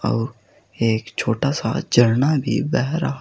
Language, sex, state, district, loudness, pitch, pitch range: Hindi, male, Uttar Pradesh, Saharanpur, -20 LUFS, 115 Hz, 110-135 Hz